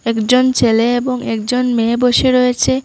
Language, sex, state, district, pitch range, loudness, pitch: Bengali, female, Assam, Hailakandi, 230-250 Hz, -14 LUFS, 245 Hz